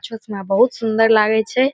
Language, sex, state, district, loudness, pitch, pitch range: Maithili, female, Bihar, Saharsa, -16 LUFS, 220 Hz, 215-235 Hz